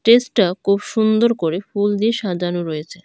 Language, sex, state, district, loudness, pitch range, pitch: Bengali, female, Tripura, Dhalai, -18 LUFS, 175-225 Hz, 200 Hz